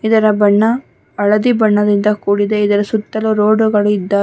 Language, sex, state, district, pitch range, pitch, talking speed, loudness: Kannada, female, Karnataka, Bangalore, 205-220 Hz, 210 Hz, 155 wpm, -14 LUFS